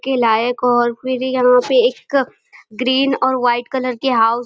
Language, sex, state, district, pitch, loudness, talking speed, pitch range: Hindi, female, Uttar Pradesh, Deoria, 250 Hz, -16 LUFS, 200 wpm, 240-260 Hz